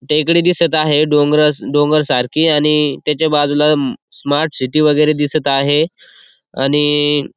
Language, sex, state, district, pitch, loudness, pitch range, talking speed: Marathi, male, Maharashtra, Aurangabad, 150 Hz, -14 LUFS, 145-155 Hz, 130 wpm